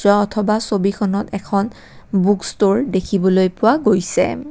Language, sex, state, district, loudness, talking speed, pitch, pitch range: Assamese, female, Assam, Kamrup Metropolitan, -17 LUFS, 120 wpm, 200 Hz, 195-215 Hz